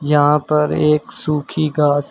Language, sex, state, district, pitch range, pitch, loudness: Hindi, male, Uttar Pradesh, Shamli, 145-150 Hz, 150 Hz, -17 LUFS